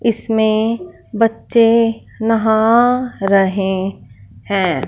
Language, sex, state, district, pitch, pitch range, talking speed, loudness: Hindi, male, Punjab, Fazilka, 220 Hz, 195-230 Hz, 60 wpm, -15 LUFS